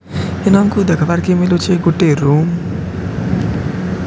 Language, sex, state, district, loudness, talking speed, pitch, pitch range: Odia, male, Odisha, Sambalpur, -15 LUFS, 105 wpm, 175 Hz, 165-185 Hz